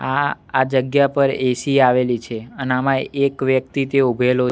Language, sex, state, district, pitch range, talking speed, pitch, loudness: Gujarati, male, Gujarat, Gandhinagar, 125-140 Hz, 175 wpm, 130 Hz, -18 LUFS